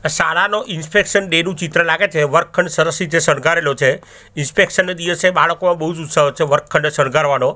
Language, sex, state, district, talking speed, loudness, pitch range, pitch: Gujarati, male, Gujarat, Gandhinagar, 175 wpm, -15 LUFS, 160-185 Hz, 170 Hz